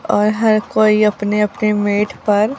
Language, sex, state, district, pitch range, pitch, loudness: Hindi, female, Bihar, Katihar, 205-215 Hz, 210 Hz, -15 LUFS